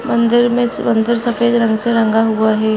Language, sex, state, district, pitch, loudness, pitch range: Hindi, female, Maharashtra, Sindhudurg, 230 Hz, -14 LUFS, 220-235 Hz